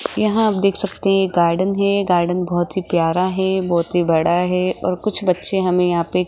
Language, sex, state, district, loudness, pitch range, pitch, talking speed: Hindi, female, Rajasthan, Jaipur, -18 LUFS, 175-195 Hz, 180 Hz, 220 wpm